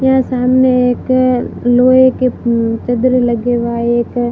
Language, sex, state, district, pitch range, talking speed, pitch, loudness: Hindi, female, Rajasthan, Barmer, 240-255 Hz, 110 wpm, 245 Hz, -13 LUFS